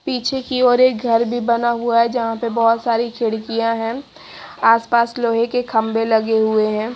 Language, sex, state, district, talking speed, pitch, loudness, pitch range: Hindi, female, Haryana, Jhajjar, 200 wpm, 235 Hz, -17 LUFS, 225-240 Hz